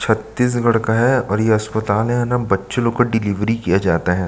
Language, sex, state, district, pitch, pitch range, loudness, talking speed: Hindi, male, Chhattisgarh, Sukma, 110 Hz, 100-120 Hz, -18 LUFS, 225 wpm